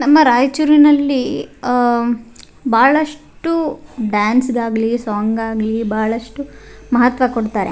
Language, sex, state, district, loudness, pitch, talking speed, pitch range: Kannada, female, Karnataka, Raichur, -16 LUFS, 240 Hz, 70 wpm, 225-280 Hz